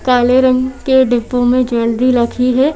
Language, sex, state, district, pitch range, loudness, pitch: Hindi, female, Madhya Pradesh, Bhopal, 245-260 Hz, -13 LUFS, 250 Hz